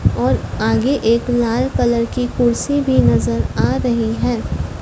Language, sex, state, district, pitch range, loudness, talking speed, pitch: Hindi, female, Madhya Pradesh, Dhar, 235-250 Hz, -17 LUFS, 135 wpm, 240 Hz